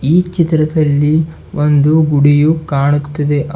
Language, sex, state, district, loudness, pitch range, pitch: Kannada, male, Karnataka, Bidar, -13 LUFS, 145-160 Hz, 150 Hz